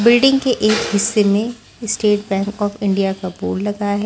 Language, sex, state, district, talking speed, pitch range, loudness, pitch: Hindi, female, Maharashtra, Washim, 190 wpm, 200-225 Hz, -17 LUFS, 205 Hz